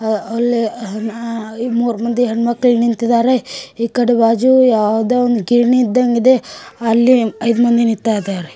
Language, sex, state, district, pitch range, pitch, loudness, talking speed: Kannada, female, Karnataka, Bijapur, 225-245 Hz, 235 Hz, -15 LUFS, 110 wpm